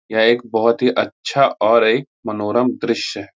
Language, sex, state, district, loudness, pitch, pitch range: Hindi, male, Bihar, Muzaffarpur, -17 LUFS, 115 Hz, 110-120 Hz